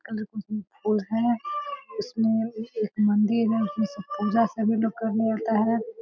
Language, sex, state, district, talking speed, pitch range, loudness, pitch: Hindi, female, Bihar, Sitamarhi, 130 wpm, 215-230 Hz, -26 LUFS, 225 Hz